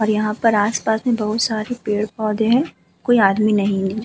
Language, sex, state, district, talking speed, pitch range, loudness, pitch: Hindi, female, Uttar Pradesh, Muzaffarnagar, 225 wpm, 210-230 Hz, -18 LUFS, 215 Hz